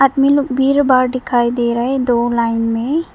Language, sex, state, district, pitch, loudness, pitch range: Hindi, female, Arunachal Pradesh, Papum Pare, 255 Hz, -15 LUFS, 235-275 Hz